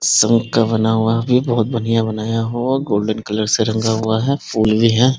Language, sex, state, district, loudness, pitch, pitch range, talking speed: Hindi, male, Bihar, Muzaffarpur, -17 LUFS, 115 Hz, 110-120 Hz, 210 wpm